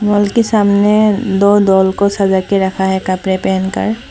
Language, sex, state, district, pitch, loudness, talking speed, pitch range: Hindi, female, Assam, Sonitpur, 200 Hz, -13 LUFS, 175 wpm, 190-210 Hz